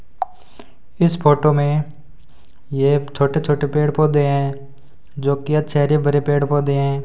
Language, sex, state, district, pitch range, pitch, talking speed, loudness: Hindi, male, Rajasthan, Bikaner, 140-150 Hz, 145 Hz, 135 wpm, -18 LUFS